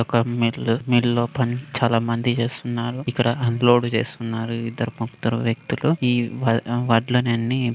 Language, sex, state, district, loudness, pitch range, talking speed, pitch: Telugu, male, Telangana, Karimnagar, -22 LUFS, 115-120 Hz, 145 wpm, 120 Hz